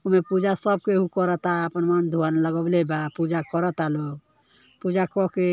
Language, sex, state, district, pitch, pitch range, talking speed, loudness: Bhojpuri, female, Uttar Pradesh, Ghazipur, 175 Hz, 165-185 Hz, 175 wpm, -24 LUFS